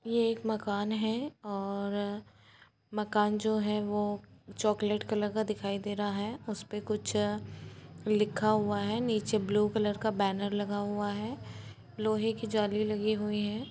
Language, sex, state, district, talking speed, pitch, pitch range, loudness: Hindi, female, Uttar Pradesh, Etah, 160 wpm, 210 Hz, 205-215 Hz, -32 LUFS